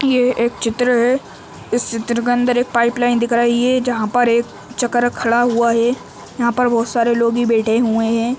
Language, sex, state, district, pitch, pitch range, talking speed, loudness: Hindi, male, Uttar Pradesh, Ghazipur, 235 Hz, 235-245 Hz, 215 wpm, -16 LUFS